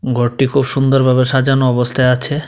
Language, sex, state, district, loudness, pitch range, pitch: Bengali, male, Tripura, Dhalai, -13 LUFS, 125-135 Hz, 130 Hz